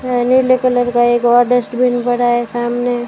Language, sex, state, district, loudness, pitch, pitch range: Hindi, female, Rajasthan, Bikaner, -14 LUFS, 245 Hz, 240-245 Hz